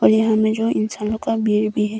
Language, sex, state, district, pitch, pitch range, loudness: Hindi, female, Arunachal Pradesh, Longding, 215 Hz, 215-220 Hz, -19 LUFS